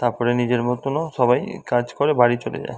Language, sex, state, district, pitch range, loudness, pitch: Bengali, male, West Bengal, Dakshin Dinajpur, 120-125 Hz, -21 LUFS, 120 Hz